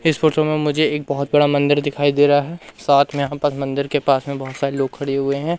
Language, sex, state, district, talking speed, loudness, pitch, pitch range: Hindi, male, Madhya Pradesh, Umaria, 280 wpm, -18 LUFS, 145 Hz, 140-150 Hz